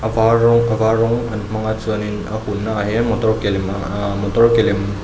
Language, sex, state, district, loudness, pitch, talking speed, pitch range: Mizo, male, Mizoram, Aizawl, -17 LUFS, 110 Hz, 225 wpm, 100-115 Hz